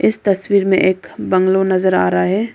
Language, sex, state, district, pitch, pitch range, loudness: Hindi, female, Arunachal Pradesh, Lower Dibang Valley, 190 Hz, 185-195 Hz, -15 LUFS